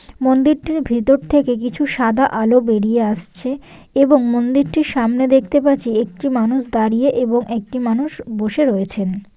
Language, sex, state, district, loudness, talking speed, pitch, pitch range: Bengali, female, West Bengal, Jalpaiguri, -17 LUFS, 135 wpm, 245 Hz, 230-275 Hz